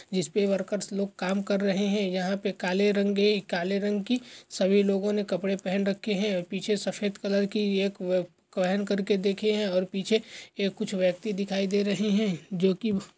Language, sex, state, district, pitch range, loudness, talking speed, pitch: Hindi, male, Uttar Pradesh, Gorakhpur, 190-205 Hz, -27 LUFS, 185 wpm, 200 Hz